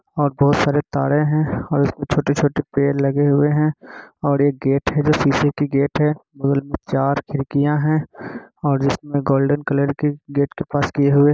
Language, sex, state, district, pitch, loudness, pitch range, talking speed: Hindi, male, Bihar, Kishanganj, 145 Hz, -19 LUFS, 140-150 Hz, 200 wpm